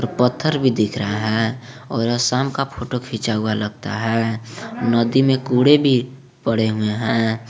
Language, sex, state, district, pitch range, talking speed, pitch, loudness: Hindi, male, Jharkhand, Garhwa, 110-130 Hz, 160 wpm, 120 Hz, -19 LUFS